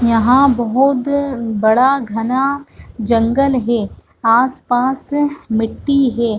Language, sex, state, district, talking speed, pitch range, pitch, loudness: Hindi, female, Chhattisgarh, Bastar, 85 wpm, 230-275 Hz, 250 Hz, -15 LUFS